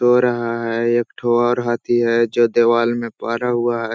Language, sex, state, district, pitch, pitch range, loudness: Hindi, male, Bihar, Jahanabad, 120 Hz, 115-120 Hz, -18 LUFS